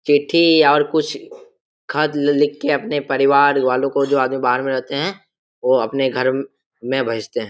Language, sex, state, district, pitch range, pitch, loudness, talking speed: Hindi, male, Jharkhand, Jamtara, 135-150 Hz, 140 Hz, -17 LUFS, 175 wpm